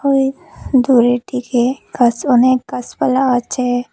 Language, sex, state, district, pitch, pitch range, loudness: Bengali, female, Tripura, Unakoti, 250 Hz, 245-265 Hz, -15 LUFS